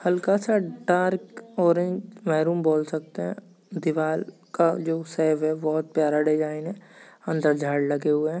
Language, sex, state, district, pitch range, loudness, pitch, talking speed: Hindi, female, Maharashtra, Nagpur, 155-180 Hz, -25 LUFS, 165 Hz, 155 wpm